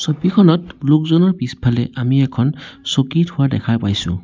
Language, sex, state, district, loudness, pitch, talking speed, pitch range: Assamese, male, Assam, Sonitpur, -16 LUFS, 135 Hz, 125 wpm, 125-160 Hz